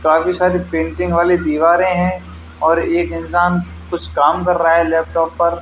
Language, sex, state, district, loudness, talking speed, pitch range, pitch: Hindi, male, Haryana, Charkhi Dadri, -16 LUFS, 170 wpm, 165-180 Hz, 170 Hz